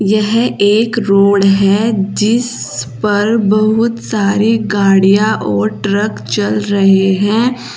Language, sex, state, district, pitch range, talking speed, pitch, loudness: Hindi, female, Uttar Pradesh, Saharanpur, 195-220 Hz, 110 wpm, 205 Hz, -12 LUFS